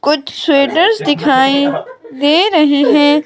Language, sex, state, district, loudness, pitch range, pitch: Hindi, female, Himachal Pradesh, Shimla, -12 LUFS, 285-325 Hz, 295 Hz